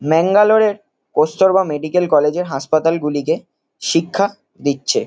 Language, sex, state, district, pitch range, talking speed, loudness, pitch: Bengali, male, West Bengal, Kolkata, 150-190 Hz, 105 wpm, -16 LUFS, 165 Hz